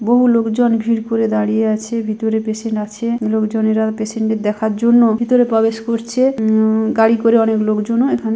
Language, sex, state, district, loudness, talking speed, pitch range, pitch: Bengali, female, West Bengal, Dakshin Dinajpur, -16 LUFS, 165 wpm, 220-230 Hz, 225 Hz